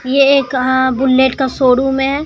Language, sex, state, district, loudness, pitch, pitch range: Hindi, male, Bihar, Katihar, -13 LUFS, 265 Hz, 260-275 Hz